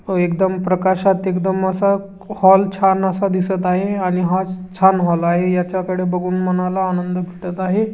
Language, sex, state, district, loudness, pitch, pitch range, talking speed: Marathi, female, Maharashtra, Chandrapur, -17 LUFS, 185 Hz, 180-190 Hz, 165 wpm